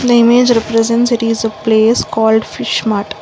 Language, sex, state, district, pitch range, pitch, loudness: English, female, Karnataka, Bangalore, 220-235 Hz, 225 Hz, -12 LUFS